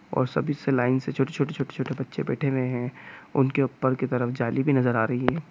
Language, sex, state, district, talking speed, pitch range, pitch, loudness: Hindi, male, Bihar, Gopalganj, 250 wpm, 125-140 Hz, 130 Hz, -26 LUFS